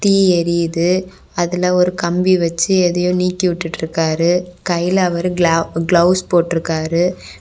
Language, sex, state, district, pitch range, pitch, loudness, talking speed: Tamil, female, Tamil Nadu, Kanyakumari, 170-180 Hz, 175 Hz, -16 LUFS, 115 wpm